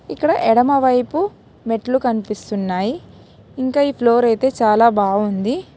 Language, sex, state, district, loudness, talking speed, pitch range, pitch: Telugu, female, Telangana, Hyderabad, -17 LUFS, 105 wpm, 220-265 Hz, 240 Hz